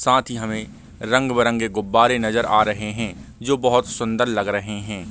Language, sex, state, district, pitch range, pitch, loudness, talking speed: Hindi, male, Chhattisgarh, Rajnandgaon, 105-120 Hz, 115 Hz, -20 LUFS, 200 wpm